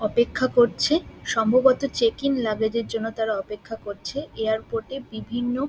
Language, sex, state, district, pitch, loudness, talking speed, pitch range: Bengali, female, West Bengal, Dakshin Dinajpur, 230 Hz, -24 LUFS, 135 wpm, 220-260 Hz